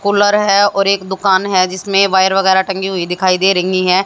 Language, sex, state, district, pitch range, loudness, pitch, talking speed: Hindi, female, Haryana, Jhajjar, 185-200 Hz, -13 LUFS, 190 Hz, 220 wpm